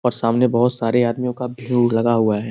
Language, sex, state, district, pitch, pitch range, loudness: Hindi, male, Uttar Pradesh, Gorakhpur, 120 Hz, 115-125 Hz, -19 LUFS